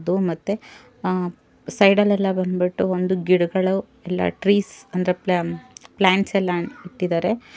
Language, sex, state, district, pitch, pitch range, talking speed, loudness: Kannada, female, Karnataka, Bangalore, 185 Hz, 180-195 Hz, 120 wpm, -21 LUFS